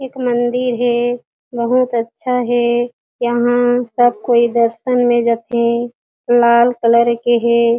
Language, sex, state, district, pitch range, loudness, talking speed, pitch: Chhattisgarhi, female, Chhattisgarh, Jashpur, 235-245 Hz, -15 LUFS, 125 wpm, 240 Hz